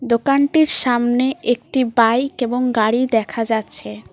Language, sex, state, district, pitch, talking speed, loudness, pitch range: Bengali, female, West Bengal, Cooch Behar, 245 Hz, 115 wpm, -17 LUFS, 225-260 Hz